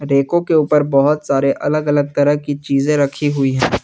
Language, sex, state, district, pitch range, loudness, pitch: Hindi, male, Jharkhand, Garhwa, 140-150 Hz, -16 LUFS, 145 Hz